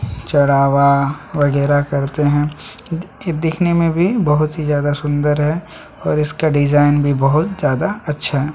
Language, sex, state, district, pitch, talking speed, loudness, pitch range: Hindi, male, Chhattisgarh, Sukma, 150 Hz, 150 wpm, -16 LUFS, 145-160 Hz